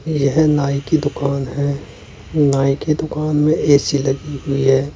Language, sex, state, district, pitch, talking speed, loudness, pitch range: Hindi, male, Uttar Pradesh, Saharanpur, 140 Hz, 155 wpm, -17 LUFS, 140-150 Hz